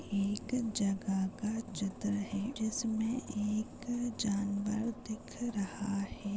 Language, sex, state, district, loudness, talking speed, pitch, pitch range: Hindi, female, Chhattisgarh, Bastar, -36 LUFS, 105 wpm, 210 Hz, 200-225 Hz